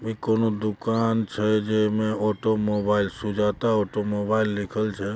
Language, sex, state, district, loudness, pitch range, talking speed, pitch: Hindi, male, Jharkhand, Jamtara, -24 LUFS, 105-110 Hz, 150 wpm, 105 Hz